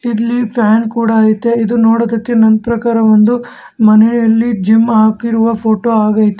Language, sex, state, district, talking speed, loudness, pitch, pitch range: Kannada, male, Karnataka, Bangalore, 130 wpm, -11 LUFS, 225 Hz, 220-235 Hz